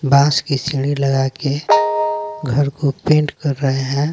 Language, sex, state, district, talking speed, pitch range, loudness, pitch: Hindi, male, Bihar, West Champaran, 160 wpm, 135-145 Hz, -17 LUFS, 140 Hz